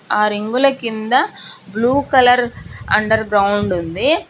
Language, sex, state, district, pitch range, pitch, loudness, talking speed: Telugu, female, Telangana, Hyderabad, 210-245 Hz, 220 Hz, -16 LUFS, 110 wpm